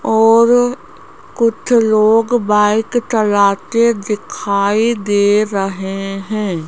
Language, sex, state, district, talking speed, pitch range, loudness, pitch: Hindi, female, Rajasthan, Jaipur, 80 wpm, 200-230 Hz, -14 LUFS, 215 Hz